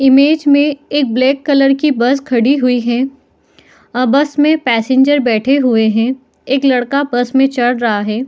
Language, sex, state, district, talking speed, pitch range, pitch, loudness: Hindi, female, Bihar, Madhepura, 175 wpm, 245-280 Hz, 265 Hz, -13 LUFS